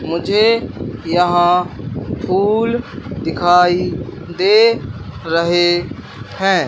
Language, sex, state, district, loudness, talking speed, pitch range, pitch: Hindi, male, Madhya Pradesh, Katni, -15 LUFS, 65 wpm, 145-195 Hz, 175 Hz